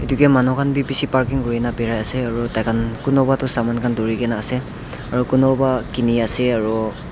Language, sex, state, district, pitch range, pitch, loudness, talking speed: Nagamese, male, Nagaland, Dimapur, 115-130 Hz, 120 Hz, -19 LUFS, 185 wpm